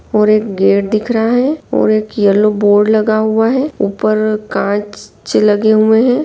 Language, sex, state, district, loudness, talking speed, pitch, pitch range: Hindi, female, Bihar, Jahanabad, -13 LUFS, 175 wpm, 215 Hz, 210-220 Hz